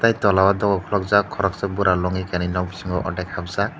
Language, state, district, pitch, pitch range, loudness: Kokborok, Tripura, Dhalai, 95 Hz, 90-100 Hz, -21 LUFS